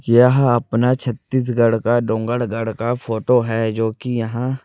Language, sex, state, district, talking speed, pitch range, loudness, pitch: Hindi, male, Chhattisgarh, Raipur, 130 wpm, 115-125 Hz, -18 LUFS, 120 Hz